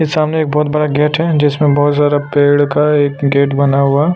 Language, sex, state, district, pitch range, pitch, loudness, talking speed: Hindi, male, Chhattisgarh, Kabirdham, 145-150 Hz, 145 Hz, -13 LUFS, 230 wpm